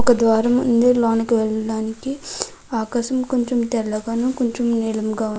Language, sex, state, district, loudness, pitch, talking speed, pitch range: Telugu, female, Andhra Pradesh, Krishna, -20 LUFS, 235 Hz, 155 wpm, 220-250 Hz